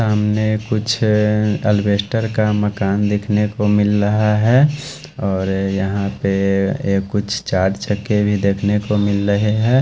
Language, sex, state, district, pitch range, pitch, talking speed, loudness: Hindi, male, Haryana, Charkhi Dadri, 100-110 Hz, 105 Hz, 140 wpm, -17 LUFS